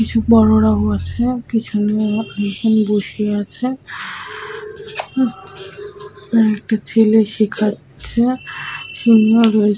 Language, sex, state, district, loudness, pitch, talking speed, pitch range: Bengali, female, West Bengal, Malda, -16 LUFS, 220 Hz, 90 wpm, 210-235 Hz